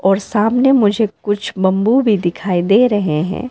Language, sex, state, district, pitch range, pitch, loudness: Hindi, female, Arunachal Pradesh, Lower Dibang Valley, 190-225 Hz, 205 Hz, -15 LUFS